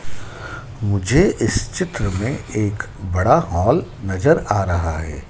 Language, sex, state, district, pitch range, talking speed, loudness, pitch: Hindi, male, Madhya Pradesh, Dhar, 90-110 Hz, 125 wpm, -19 LUFS, 100 Hz